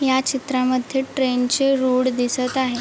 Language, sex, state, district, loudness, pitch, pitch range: Marathi, female, Maharashtra, Chandrapur, -20 LUFS, 260 Hz, 255-265 Hz